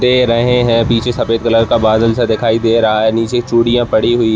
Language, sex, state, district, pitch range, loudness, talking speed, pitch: Hindi, male, Chhattisgarh, Balrampur, 115-120 Hz, -12 LUFS, 245 wpm, 115 Hz